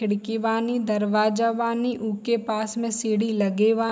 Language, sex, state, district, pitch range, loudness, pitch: Hindi, female, Bihar, Saharsa, 215-230 Hz, -24 LUFS, 225 Hz